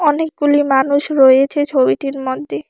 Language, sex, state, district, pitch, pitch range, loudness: Bengali, female, West Bengal, Alipurduar, 275 Hz, 260-290 Hz, -14 LUFS